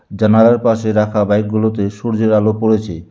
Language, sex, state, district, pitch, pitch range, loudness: Bengali, male, West Bengal, Alipurduar, 110 Hz, 105-110 Hz, -14 LUFS